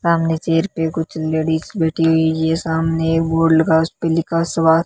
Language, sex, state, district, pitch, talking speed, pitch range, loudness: Hindi, female, Rajasthan, Bikaner, 165 Hz, 195 wpm, 160-165 Hz, -17 LUFS